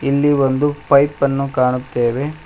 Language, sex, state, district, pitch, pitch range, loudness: Kannada, male, Karnataka, Koppal, 140 Hz, 130-145 Hz, -16 LUFS